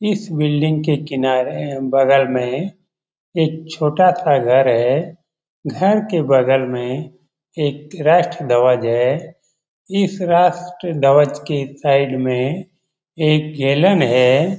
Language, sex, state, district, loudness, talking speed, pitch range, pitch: Hindi, male, Bihar, Jamui, -17 LUFS, 115 wpm, 135-175 Hz, 150 Hz